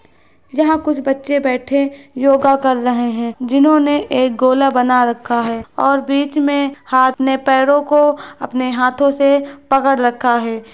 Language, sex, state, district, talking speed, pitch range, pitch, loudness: Hindi, female, Bihar, Muzaffarpur, 150 wpm, 250-280 Hz, 270 Hz, -15 LUFS